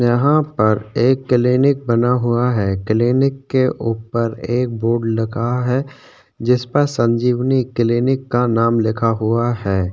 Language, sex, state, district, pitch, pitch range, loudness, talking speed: Hindi, male, Chhattisgarh, Sukma, 120 Hz, 115-130 Hz, -17 LUFS, 140 wpm